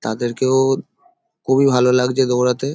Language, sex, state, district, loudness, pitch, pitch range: Bengali, male, West Bengal, Paschim Medinipur, -17 LUFS, 130 Hz, 125-140 Hz